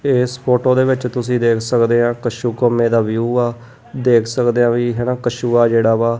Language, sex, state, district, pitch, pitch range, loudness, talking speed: Punjabi, male, Punjab, Kapurthala, 120 Hz, 115-125 Hz, -16 LUFS, 195 wpm